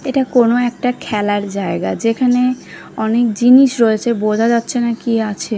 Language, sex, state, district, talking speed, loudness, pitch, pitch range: Bengali, female, Odisha, Khordha, 160 wpm, -15 LUFS, 235 Hz, 215-245 Hz